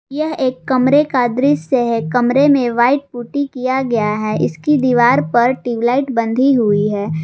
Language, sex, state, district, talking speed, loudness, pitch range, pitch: Hindi, female, Jharkhand, Garhwa, 165 wpm, -15 LUFS, 235-270 Hz, 250 Hz